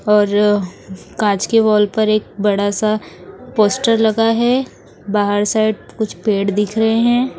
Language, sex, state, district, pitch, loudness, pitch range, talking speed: Hindi, female, Haryana, Rohtak, 215 Hz, -16 LUFS, 205-225 Hz, 145 wpm